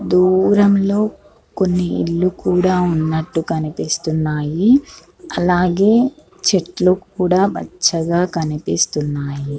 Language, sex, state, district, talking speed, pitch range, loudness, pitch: Telugu, female, Andhra Pradesh, Krishna, 75 wpm, 160-195 Hz, -17 LUFS, 180 Hz